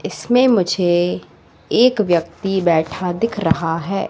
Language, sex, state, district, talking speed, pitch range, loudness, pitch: Hindi, female, Madhya Pradesh, Katni, 115 wpm, 165-210 Hz, -17 LUFS, 180 Hz